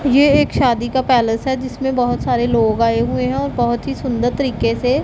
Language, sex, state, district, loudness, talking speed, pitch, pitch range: Hindi, female, Punjab, Pathankot, -17 LUFS, 225 wpm, 245 Hz, 230-265 Hz